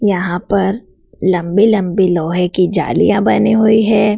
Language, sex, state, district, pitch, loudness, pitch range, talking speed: Hindi, female, Madhya Pradesh, Dhar, 195 Hz, -13 LUFS, 180-210 Hz, 145 wpm